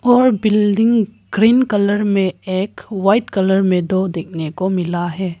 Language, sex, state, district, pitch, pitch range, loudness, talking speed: Hindi, female, Arunachal Pradesh, Papum Pare, 195 Hz, 185-210 Hz, -16 LUFS, 155 wpm